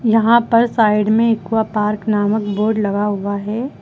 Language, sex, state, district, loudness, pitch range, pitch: Hindi, female, Uttar Pradesh, Lucknow, -16 LUFS, 210-225 Hz, 215 Hz